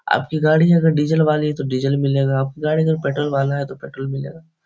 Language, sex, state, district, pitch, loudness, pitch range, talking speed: Hindi, male, Bihar, Supaul, 150 Hz, -18 LUFS, 140-155 Hz, 220 wpm